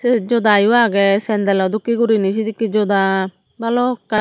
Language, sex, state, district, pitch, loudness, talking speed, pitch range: Chakma, female, Tripura, Dhalai, 215 Hz, -16 LUFS, 155 wpm, 200-235 Hz